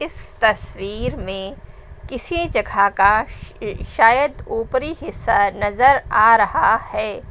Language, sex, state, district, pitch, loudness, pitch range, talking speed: Hindi, female, Uttar Pradesh, Lucknow, 220 Hz, -18 LUFS, 200-260 Hz, 105 wpm